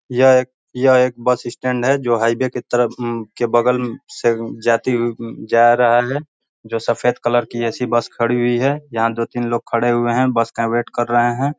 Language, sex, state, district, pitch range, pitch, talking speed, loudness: Hindi, male, Uttar Pradesh, Ghazipur, 120-125 Hz, 120 Hz, 215 wpm, -17 LUFS